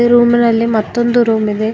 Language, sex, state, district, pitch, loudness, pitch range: Kannada, female, Karnataka, Bidar, 235 Hz, -13 LUFS, 220-240 Hz